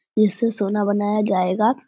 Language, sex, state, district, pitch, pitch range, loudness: Hindi, female, Bihar, Vaishali, 210 Hz, 200-220 Hz, -20 LUFS